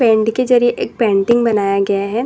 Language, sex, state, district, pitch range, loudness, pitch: Hindi, female, Chhattisgarh, Bastar, 200-240 Hz, -15 LUFS, 225 Hz